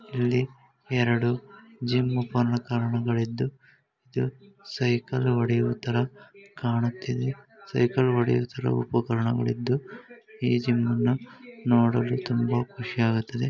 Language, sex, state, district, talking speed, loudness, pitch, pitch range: Kannada, male, Karnataka, Dharwad, 80 wpm, -26 LUFS, 120 Hz, 120-130 Hz